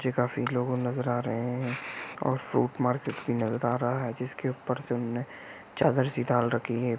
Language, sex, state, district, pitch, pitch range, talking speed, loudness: Hindi, male, Jharkhand, Sahebganj, 125 Hz, 120-130 Hz, 205 wpm, -29 LUFS